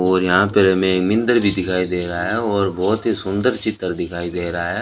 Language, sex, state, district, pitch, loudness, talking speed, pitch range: Hindi, male, Rajasthan, Bikaner, 95 Hz, -18 LUFS, 225 wpm, 90-100 Hz